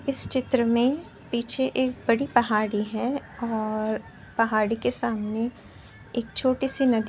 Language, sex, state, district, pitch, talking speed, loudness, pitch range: Hindi, female, Uttar Pradesh, Etah, 235 Hz, 145 wpm, -26 LUFS, 220-260 Hz